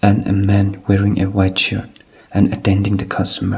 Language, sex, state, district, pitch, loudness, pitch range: English, male, Nagaland, Kohima, 100 Hz, -16 LUFS, 95-100 Hz